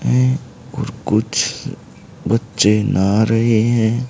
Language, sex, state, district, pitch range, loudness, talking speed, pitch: Hindi, male, Haryana, Charkhi Dadri, 105-120 Hz, -17 LUFS, 90 wpm, 110 Hz